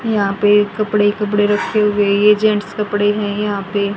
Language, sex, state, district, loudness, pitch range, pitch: Hindi, female, Haryana, Rohtak, -15 LUFS, 205-210 Hz, 205 Hz